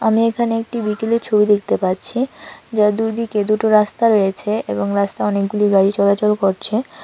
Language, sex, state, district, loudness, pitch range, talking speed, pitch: Bengali, female, Tripura, West Tripura, -17 LUFS, 200-225 Hz, 155 wpm, 210 Hz